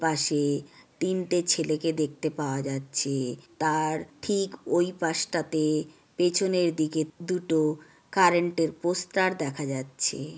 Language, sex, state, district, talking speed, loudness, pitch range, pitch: Bengali, female, West Bengal, Jhargram, 105 wpm, -27 LUFS, 150-175 Hz, 160 Hz